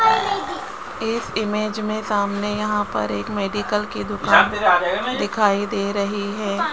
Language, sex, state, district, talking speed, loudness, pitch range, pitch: Hindi, female, Rajasthan, Jaipur, 125 wpm, -21 LUFS, 200-215 Hz, 210 Hz